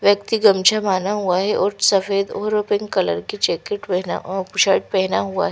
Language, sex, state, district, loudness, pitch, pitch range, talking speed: Hindi, female, Bihar, Katihar, -19 LUFS, 200 Hz, 190-205 Hz, 185 wpm